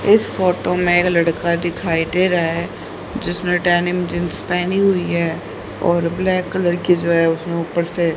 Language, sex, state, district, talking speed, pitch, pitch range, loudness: Hindi, female, Haryana, Rohtak, 175 wpm, 175 Hz, 170-180 Hz, -18 LUFS